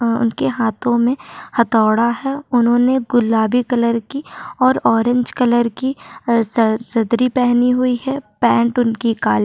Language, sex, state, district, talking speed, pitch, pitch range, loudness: Hindi, female, Maharashtra, Chandrapur, 160 wpm, 240 Hz, 230-250 Hz, -16 LUFS